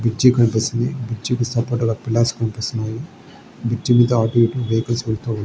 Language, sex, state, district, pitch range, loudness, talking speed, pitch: Telugu, male, Andhra Pradesh, Srikakulam, 115-120 Hz, -19 LUFS, 155 wpm, 115 Hz